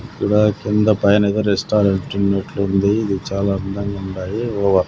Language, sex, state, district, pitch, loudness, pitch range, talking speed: Telugu, male, Andhra Pradesh, Sri Satya Sai, 100 Hz, -18 LUFS, 100-105 Hz, 110 wpm